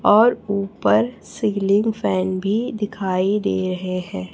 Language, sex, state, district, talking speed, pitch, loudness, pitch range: Hindi, female, Chhattisgarh, Raipur, 125 wpm, 200 Hz, -20 LUFS, 185-215 Hz